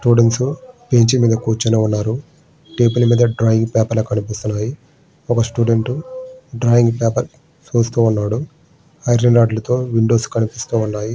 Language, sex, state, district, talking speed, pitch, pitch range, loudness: Telugu, male, Andhra Pradesh, Srikakulam, 130 wpm, 120 Hz, 115-130 Hz, -17 LUFS